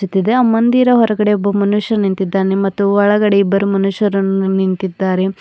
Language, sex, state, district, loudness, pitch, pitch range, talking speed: Kannada, female, Karnataka, Bidar, -14 LUFS, 200 Hz, 195-210 Hz, 120 wpm